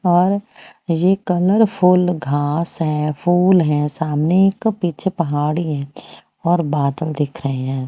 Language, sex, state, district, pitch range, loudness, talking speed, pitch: Hindi, female, Haryana, Rohtak, 150-180 Hz, -18 LUFS, 130 wpm, 170 Hz